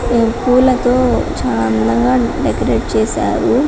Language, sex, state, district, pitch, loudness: Telugu, female, Telangana, Karimnagar, 230 Hz, -14 LUFS